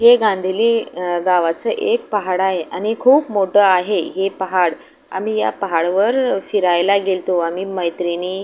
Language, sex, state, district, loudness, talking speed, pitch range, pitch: Marathi, female, Maharashtra, Aurangabad, -17 LUFS, 140 wpm, 180-210 Hz, 190 Hz